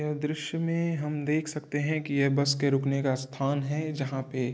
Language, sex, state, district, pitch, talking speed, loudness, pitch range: Hindi, male, Uttar Pradesh, Varanasi, 145 Hz, 240 wpm, -29 LUFS, 140-155 Hz